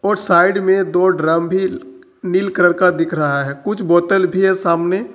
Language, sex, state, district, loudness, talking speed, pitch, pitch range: Hindi, male, Jharkhand, Ranchi, -15 LUFS, 200 wpm, 180 Hz, 170-190 Hz